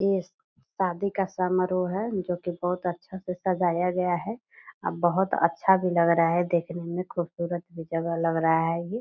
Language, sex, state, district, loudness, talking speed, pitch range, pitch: Hindi, female, Bihar, Purnia, -27 LUFS, 185 wpm, 170-190 Hz, 180 Hz